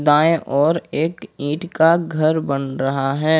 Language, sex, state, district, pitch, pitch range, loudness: Hindi, male, Jharkhand, Ranchi, 155 Hz, 140-160 Hz, -19 LUFS